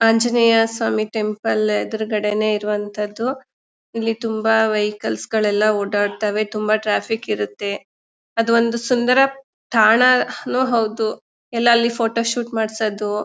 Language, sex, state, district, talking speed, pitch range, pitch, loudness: Kannada, female, Karnataka, Mysore, 110 wpm, 215-235 Hz, 220 Hz, -19 LUFS